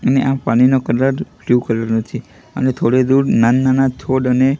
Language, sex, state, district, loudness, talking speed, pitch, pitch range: Gujarati, male, Gujarat, Gandhinagar, -15 LUFS, 185 wpm, 130 Hz, 120-135 Hz